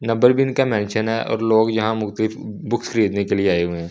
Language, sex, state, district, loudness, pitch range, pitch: Hindi, male, Delhi, New Delhi, -19 LUFS, 105-115 Hz, 110 Hz